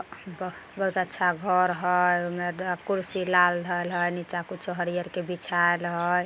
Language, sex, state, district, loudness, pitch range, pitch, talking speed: Maithili, female, Bihar, Samastipur, -27 LUFS, 175-180 Hz, 180 Hz, 155 wpm